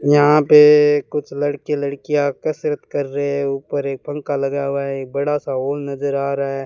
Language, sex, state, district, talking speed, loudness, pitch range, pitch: Hindi, male, Rajasthan, Bikaner, 200 wpm, -18 LUFS, 140-145 Hz, 140 Hz